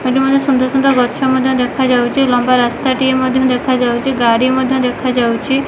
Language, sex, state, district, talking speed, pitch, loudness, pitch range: Odia, female, Odisha, Malkangiri, 150 wpm, 255 Hz, -13 LUFS, 245-265 Hz